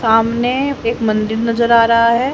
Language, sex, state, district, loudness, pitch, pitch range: Hindi, female, Haryana, Jhajjar, -14 LUFS, 230 Hz, 225-240 Hz